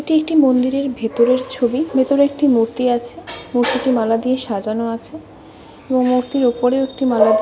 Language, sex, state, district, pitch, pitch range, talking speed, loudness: Bengali, female, West Bengal, North 24 Parganas, 255 Hz, 240-270 Hz, 170 wpm, -17 LUFS